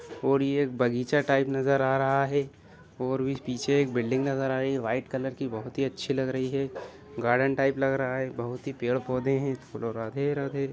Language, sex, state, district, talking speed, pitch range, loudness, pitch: Hindi, male, Bihar, Begusarai, 210 wpm, 130-140 Hz, -28 LUFS, 135 Hz